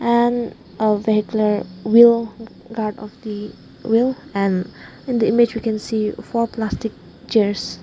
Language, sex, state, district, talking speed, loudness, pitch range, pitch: English, female, Nagaland, Dimapur, 140 wpm, -19 LUFS, 210-235 Hz, 220 Hz